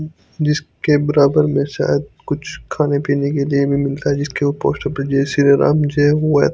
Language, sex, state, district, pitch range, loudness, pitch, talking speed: Hindi, male, Chandigarh, Chandigarh, 140-150 Hz, -17 LUFS, 145 Hz, 175 wpm